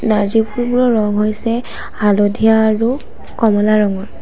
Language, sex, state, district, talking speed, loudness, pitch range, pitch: Assamese, female, Assam, Sonitpur, 115 wpm, -15 LUFS, 210-230 Hz, 220 Hz